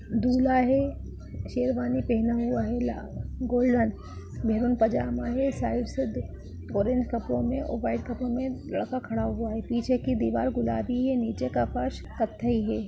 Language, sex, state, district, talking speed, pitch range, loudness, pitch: Hindi, female, Bihar, Darbhanga, 155 wpm, 220-250 Hz, -28 LUFS, 240 Hz